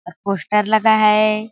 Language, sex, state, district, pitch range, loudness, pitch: Hindi, female, Chhattisgarh, Balrampur, 210-220 Hz, -16 LUFS, 215 Hz